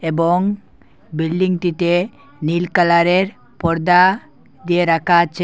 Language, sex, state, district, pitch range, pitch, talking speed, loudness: Bengali, male, Assam, Hailakandi, 165-180 Hz, 175 Hz, 90 wpm, -16 LUFS